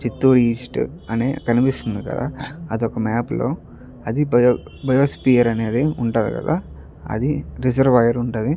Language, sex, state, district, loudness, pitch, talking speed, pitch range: Telugu, male, Andhra Pradesh, Chittoor, -20 LUFS, 120 Hz, 125 wpm, 115-135 Hz